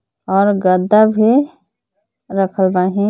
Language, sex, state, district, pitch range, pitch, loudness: Bhojpuri, female, Jharkhand, Palamu, 185-215 Hz, 200 Hz, -14 LUFS